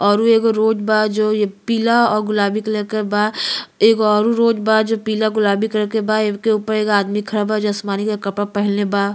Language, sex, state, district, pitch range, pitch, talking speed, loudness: Bhojpuri, female, Uttar Pradesh, Gorakhpur, 205-220 Hz, 215 Hz, 230 wpm, -17 LUFS